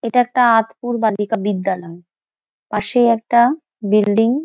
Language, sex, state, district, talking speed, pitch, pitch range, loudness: Bengali, female, West Bengal, Kolkata, 120 wpm, 225 Hz, 205-240 Hz, -17 LUFS